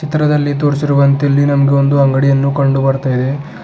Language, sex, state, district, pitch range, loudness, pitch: Kannada, male, Karnataka, Bidar, 135-145 Hz, -13 LUFS, 140 Hz